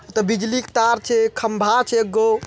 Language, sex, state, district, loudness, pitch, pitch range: Hindi, male, Bihar, Araria, -19 LUFS, 225 Hz, 220-235 Hz